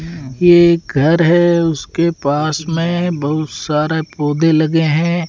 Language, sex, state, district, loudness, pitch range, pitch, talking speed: Hindi, male, Rajasthan, Jaisalmer, -14 LUFS, 150-170 Hz, 165 Hz, 125 wpm